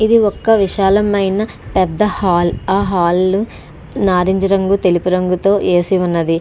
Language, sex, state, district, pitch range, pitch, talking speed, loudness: Telugu, female, Andhra Pradesh, Srikakulam, 180-200 Hz, 190 Hz, 120 wpm, -14 LUFS